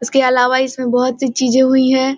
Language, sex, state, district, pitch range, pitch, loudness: Hindi, female, Bihar, Gopalganj, 250-265 Hz, 260 Hz, -14 LUFS